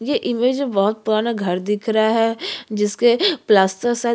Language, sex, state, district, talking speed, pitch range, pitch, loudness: Hindi, female, Chhattisgarh, Sukma, 200 wpm, 210-240 Hz, 225 Hz, -19 LUFS